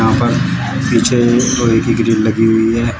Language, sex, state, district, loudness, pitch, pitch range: Hindi, male, Uttar Pradesh, Shamli, -13 LUFS, 115 Hz, 110-120 Hz